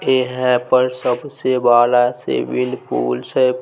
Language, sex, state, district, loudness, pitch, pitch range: Maithili, male, Bihar, Samastipur, -17 LUFS, 125 Hz, 120-130 Hz